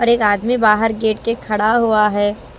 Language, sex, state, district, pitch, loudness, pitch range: Hindi, female, Haryana, Rohtak, 220 Hz, -16 LUFS, 210-230 Hz